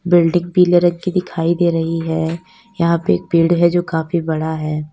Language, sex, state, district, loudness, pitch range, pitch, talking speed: Hindi, female, Uttar Pradesh, Lalitpur, -16 LUFS, 165-175 Hz, 170 Hz, 205 wpm